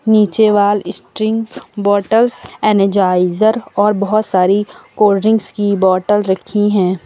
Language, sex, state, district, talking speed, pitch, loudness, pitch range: Hindi, female, Uttar Pradesh, Lucknow, 120 wpm, 205 Hz, -14 LUFS, 195-215 Hz